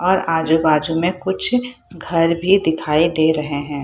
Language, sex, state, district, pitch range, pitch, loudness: Hindi, female, Bihar, Purnia, 155-185 Hz, 165 Hz, -17 LUFS